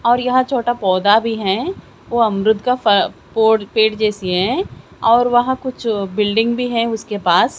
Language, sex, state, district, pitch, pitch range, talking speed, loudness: Hindi, female, Haryana, Jhajjar, 225 Hz, 205-245 Hz, 175 wpm, -16 LUFS